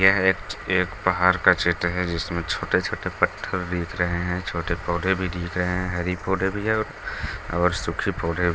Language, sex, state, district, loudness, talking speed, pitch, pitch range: Hindi, male, Bihar, Gaya, -24 LUFS, 185 wpm, 90 Hz, 85-95 Hz